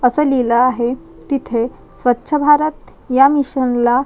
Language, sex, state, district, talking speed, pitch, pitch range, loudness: Marathi, female, Maharashtra, Chandrapur, 120 wpm, 255 Hz, 245-290 Hz, -16 LUFS